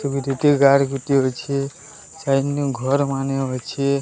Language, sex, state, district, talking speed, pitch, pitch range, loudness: Odia, male, Odisha, Sambalpur, 105 wpm, 140 Hz, 135-140 Hz, -20 LUFS